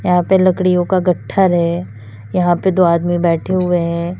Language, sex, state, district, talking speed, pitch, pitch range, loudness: Hindi, female, Uttar Pradesh, Lalitpur, 185 wpm, 175 Hz, 170-185 Hz, -15 LUFS